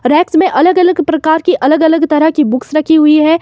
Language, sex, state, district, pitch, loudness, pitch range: Hindi, female, Himachal Pradesh, Shimla, 315 Hz, -10 LUFS, 305-330 Hz